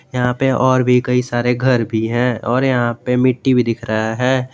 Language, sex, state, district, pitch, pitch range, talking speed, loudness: Hindi, male, Jharkhand, Garhwa, 125 Hz, 120-130 Hz, 225 wpm, -16 LUFS